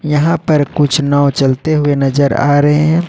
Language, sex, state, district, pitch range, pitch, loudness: Hindi, male, Jharkhand, Ranchi, 140-155 Hz, 145 Hz, -12 LUFS